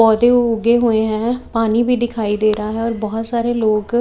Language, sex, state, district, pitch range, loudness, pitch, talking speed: Hindi, female, Chhattisgarh, Raipur, 220-240 Hz, -17 LUFS, 230 Hz, 210 wpm